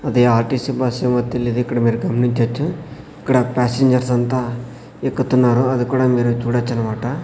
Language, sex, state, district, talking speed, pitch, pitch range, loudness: Telugu, male, Andhra Pradesh, Sri Satya Sai, 140 wpm, 125 Hz, 120-130 Hz, -18 LUFS